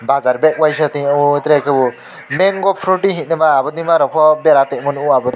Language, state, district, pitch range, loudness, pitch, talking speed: Kokborok, Tripura, West Tripura, 140-165 Hz, -14 LUFS, 150 Hz, 180 wpm